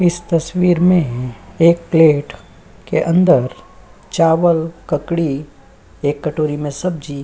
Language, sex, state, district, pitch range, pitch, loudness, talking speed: Hindi, female, Uttar Pradesh, Jyotiba Phule Nagar, 140-170 Hz, 160 Hz, -16 LUFS, 115 wpm